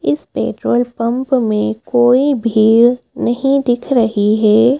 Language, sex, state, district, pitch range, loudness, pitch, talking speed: Hindi, female, Madhya Pradesh, Bhopal, 220-250 Hz, -14 LUFS, 240 Hz, 125 wpm